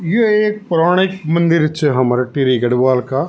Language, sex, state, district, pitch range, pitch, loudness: Garhwali, male, Uttarakhand, Tehri Garhwal, 130-180 Hz, 160 Hz, -15 LUFS